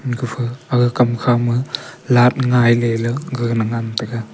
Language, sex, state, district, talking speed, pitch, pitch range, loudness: Wancho, male, Arunachal Pradesh, Longding, 125 wpm, 120 Hz, 115-125 Hz, -17 LUFS